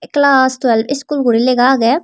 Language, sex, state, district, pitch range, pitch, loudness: Chakma, female, Tripura, Dhalai, 240-280 Hz, 260 Hz, -13 LUFS